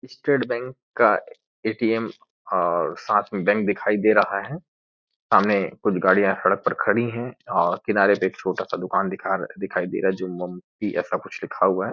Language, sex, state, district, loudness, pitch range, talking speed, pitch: Hindi, male, Chhattisgarh, Korba, -23 LUFS, 100-130 Hz, 180 wpm, 110 Hz